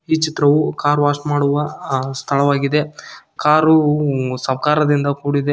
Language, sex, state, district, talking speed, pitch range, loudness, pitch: Kannada, male, Karnataka, Koppal, 110 wpm, 140-150 Hz, -17 LUFS, 145 Hz